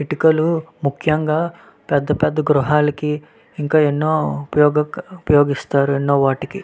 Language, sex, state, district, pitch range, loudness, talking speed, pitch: Telugu, male, Andhra Pradesh, Visakhapatnam, 145-160 Hz, -18 LUFS, 100 wpm, 150 Hz